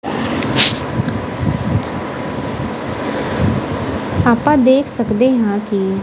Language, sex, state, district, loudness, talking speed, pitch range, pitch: Punjabi, female, Punjab, Kapurthala, -17 LUFS, 50 wpm, 205-260 Hz, 235 Hz